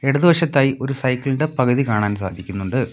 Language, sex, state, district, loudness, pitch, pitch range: Malayalam, male, Kerala, Kollam, -19 LUFS, 130 Hz, 105-135 Hz